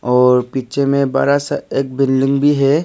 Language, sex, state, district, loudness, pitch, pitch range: Hindi, male, Arunachal Pradesh, Longding, -15 LUFS, 135 Hz, 130-140 Hz